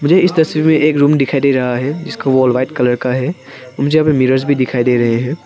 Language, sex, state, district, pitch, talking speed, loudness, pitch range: Hindi, male, Arunachal Pradesh, Papum Pare, 135 Hz, 275 wpm, -14 LUFS, 125-155 Hz